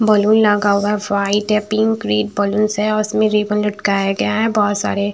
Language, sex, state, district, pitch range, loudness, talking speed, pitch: Hindi, female, Bihar, Patna, 205-215 Hz, -16 LUFS, 210 wpm, 210 Hz